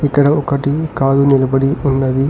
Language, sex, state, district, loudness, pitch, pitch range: Telugu, male, Telangana, Hyderabad, -14 LUFS, 140 Hz, 135-145 Hz